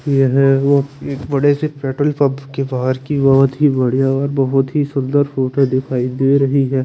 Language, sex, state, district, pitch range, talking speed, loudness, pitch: Hindi, male, Chandigarh, Chandigarh, 135-140 Hz, 210 wpm, -16 LUFS, 135 Hz